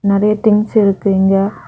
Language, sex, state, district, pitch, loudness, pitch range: Tamil, female, Tamil Nadu, Kanyakumari, 200 Hz, -13 LUFS, 195-210 Hz